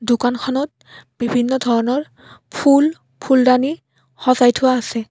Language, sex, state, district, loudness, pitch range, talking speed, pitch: Assamese, female, Assam, Kamrup Metropolitan, -17 LUFS, 240-270 Hz, 95 wpm, 255 Hz